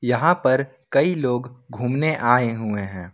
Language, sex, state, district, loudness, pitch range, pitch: Hindi, male, Jharkhand, Ranchi, -21 LUFS, 120-130 Hz, 125 Hz